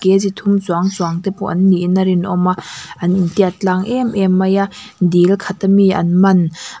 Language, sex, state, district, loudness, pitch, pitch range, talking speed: Mizo, female, Mizoram, Aizawl, -15 LUFS, 190 Hz, 180-195 Hz, 210 wpm